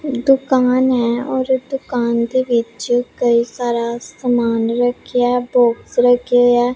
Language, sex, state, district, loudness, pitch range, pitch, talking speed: Punjabi, female, Punjab, Pathankot, -16 LUFS, 235-255 Hz, 245 Hz, 115 wpm